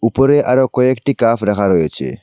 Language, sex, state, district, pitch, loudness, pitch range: Bengali, male, Assam, Hailakandi, 125 Hz, -14 LUFS, 115-135 Hz